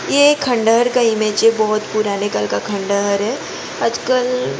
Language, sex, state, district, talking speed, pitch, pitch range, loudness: Hindi, female, Goa, North and South Goa, 170 wpm, 215 Hz, 200-245 Hz, -16 LUFS